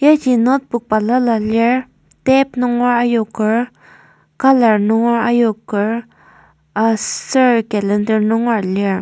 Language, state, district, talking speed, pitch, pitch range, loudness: Ao, Nagaland, Kohima, 85 wpm, 230 Hz, 215-245 Hz, -15 LUFS